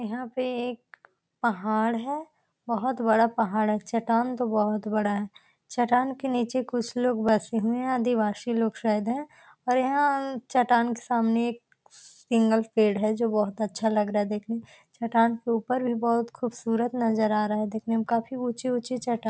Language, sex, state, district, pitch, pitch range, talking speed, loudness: Hindi, female, Bihar, Araria, 230 Hz, 220-245 Hz, 185 wpm, -26 LUFS